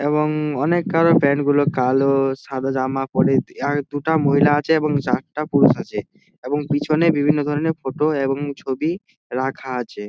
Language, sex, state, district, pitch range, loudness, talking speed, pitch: Bengali, male, West Bengal, Dakshin Dinajpur, 135-150 Hz, -20 LUFS, 155 wpm, 145 Hz